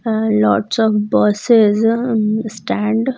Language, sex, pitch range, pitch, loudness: English, female, 210-225 Hz, 220 Hz, -15 LUFS